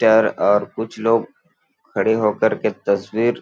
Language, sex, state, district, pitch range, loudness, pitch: Hindi, male, Chhattisgarh, Balrampur, 105-115 Hz, -19 LUFS, 110 Hz